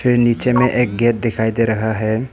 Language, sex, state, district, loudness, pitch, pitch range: Hindi, male, Arunachal Pradesh, Papum Pare, -16 LUFS, 115 Hz, 110-125 Hz